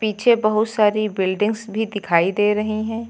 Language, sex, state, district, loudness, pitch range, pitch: Hindi, female, Uttar Pradesh, Lucknow, -19 LUFS, 205-220 Hz, 215 Hz